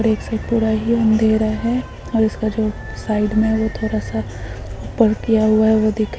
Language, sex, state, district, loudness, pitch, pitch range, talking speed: Hindi, female, Chhattisgarh, Bilaspur, -18 LUFS, 220 Hz, 210-220 Hz, 205 wpm